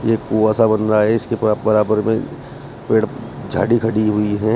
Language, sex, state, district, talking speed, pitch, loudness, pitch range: Hindi, male, Uttar Pradesh, Shamli, 185 wpm, 110 Hz, -17 LUFS, 110-115 Hz